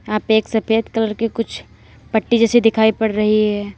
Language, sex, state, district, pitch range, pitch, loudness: Hindi, female, Uttar Pradesh, Lalitpur, 210-225 Hz, 220 Hz, -17 LUFS